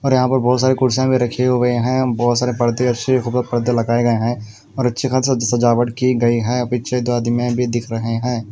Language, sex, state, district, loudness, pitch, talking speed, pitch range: Hindi, male, Punjab, Kapurthala, -17 LUFS, 120 Hz, 240 wpm, 120-125 Hz